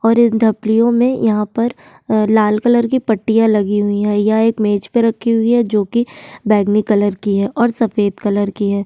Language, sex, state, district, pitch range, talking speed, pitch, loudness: Hindi, female, Uttar Pradesh, Jyotiba Phule Nagar, 205-230 Hz, 210 wpm, 220 Hz, -15 LUFS